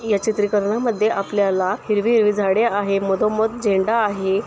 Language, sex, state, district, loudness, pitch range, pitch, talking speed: Marathi, female, Maharashtra, Sindhudurg, -19 LUFS, 200-220 Hz, 210 Hz, 135 wpm